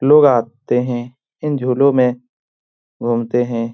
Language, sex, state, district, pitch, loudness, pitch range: Hindi, male, Bihar, Jamui, 125 Hz, -17 LUFS, 120-135 Hz